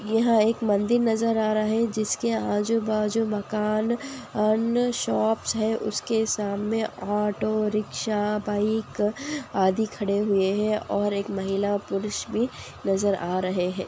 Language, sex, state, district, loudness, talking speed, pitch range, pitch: Hindi, female, Andhra Pradesh, Anantapur, -25 LUFS, 130 wpm, 205-225 Hz, 215 Hz